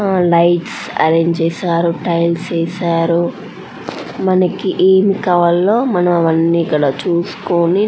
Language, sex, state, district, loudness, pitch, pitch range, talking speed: Telugu, female, Andhra Pradesh, Anantapur, -14 LUFS, 170 Hz, 170-185 Hz, 100 wpm